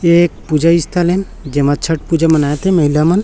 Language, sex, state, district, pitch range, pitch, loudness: Hindi, male, Chhattisgarh, Raipur, 150-175 Hz, 165 Hz, -14 LUFS